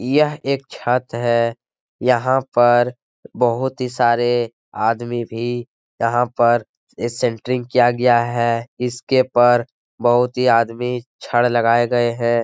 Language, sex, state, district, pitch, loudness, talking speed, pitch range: Hindi, male, Bihar, Araria, 120 Hz, -18 LUFS, 125 wpm, 120-125 Hz